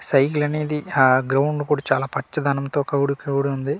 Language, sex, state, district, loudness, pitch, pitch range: Telugu, male, Andhra Pradesh, Manyam, -21 LUFS, 140 Hz, 135-150 Hz